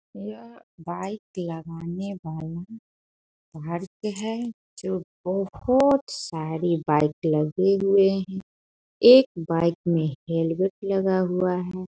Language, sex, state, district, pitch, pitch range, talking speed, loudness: Hindi, female, Bihar, Sitamarhi, 185 Hz, 165-195 Hz, 105 wpm, -24 LUFS